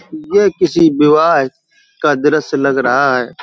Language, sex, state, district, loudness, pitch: Hindi, male, Uttar Pradesh, Hamirpur, -13 LUFS, 150 Hz